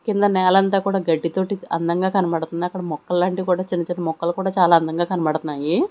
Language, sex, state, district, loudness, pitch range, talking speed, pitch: Telugu, female, Andhra Pradesh, Manyam, -20 LUFS, 165-190 Hz, 170 wpm, 180 Hz